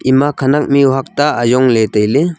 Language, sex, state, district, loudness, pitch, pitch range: Wancho, male, Arunachal Pradesh, Longding, -12 LUFS, 135 Hz, 125-145 Hz